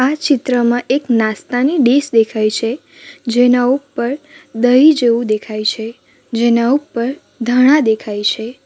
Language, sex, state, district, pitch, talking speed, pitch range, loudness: Gujarati, female, Gujarat, Valsad, 245 Hz, 125 wpm, 225-270 Hz, -14 LUFS